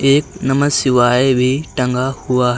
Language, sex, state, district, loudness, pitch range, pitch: Hindi, male, Uttar Pradesh, Lucknow, -15 LUFS, 125-135 Hz, 130 Hz